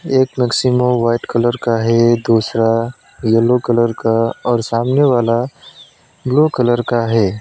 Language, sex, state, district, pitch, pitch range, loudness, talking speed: Hindi, male, West Bengal, Alipurduar, 120 Hz, 115-125 Hz, -15 LUFS, 135 wpm